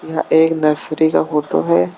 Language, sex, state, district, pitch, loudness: Hindi, male, Uttar Pradesh, Lucknow, 150 Hz, -15 LUFS